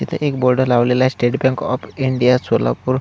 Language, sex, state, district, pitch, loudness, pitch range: Marathi, male, Maharashtra, Solapur, 130 Hz, -17 LUFS, 125-130 Hz